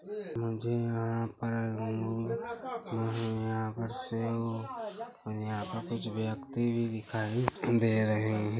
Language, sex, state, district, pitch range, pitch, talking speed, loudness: Hindi, male, Chhattisgarh, Bilaspur, 110-120 Hz, 115 Hz, 125 wpm, -34 LUFS